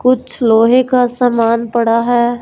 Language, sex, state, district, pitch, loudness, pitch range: Hindi, female, Punjab, Fazilka, 240 Hz, -13 LUFS, 230-250 Hz